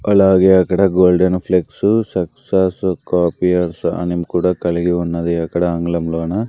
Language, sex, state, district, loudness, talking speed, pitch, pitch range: Telugu, male, Andhra Pradesh, Sri Satya Sai, -16 LUFS, 120 wpm, 90 Hz, 85-95 Hz